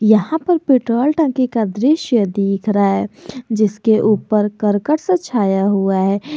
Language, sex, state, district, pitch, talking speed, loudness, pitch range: Hindi, male, Jharkhand, Garhwa, 215 Hz, 150 wpm, -16 LUFS, 200-260 Hz